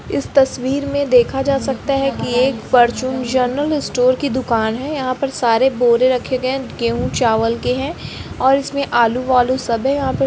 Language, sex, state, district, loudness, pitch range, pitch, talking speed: Hindi, female, Bihar, Lakhisarai, -17 LUFS, 245-275 Hz, 260 Hz, 200 wpm